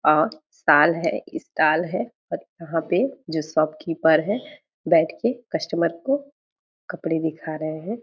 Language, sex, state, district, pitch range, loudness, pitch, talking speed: Hindi, female, Bihar, Purnia, 160-240 Hz, -23 LUFS, 170 Hz, 140 wpm